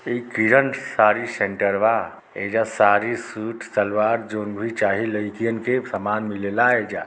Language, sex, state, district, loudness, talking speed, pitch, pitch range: Bhojpuri, male, Uttar Pradesh, Deoria, -21 LUFS, 160 wpm, 110 Hz, 105-120 Hz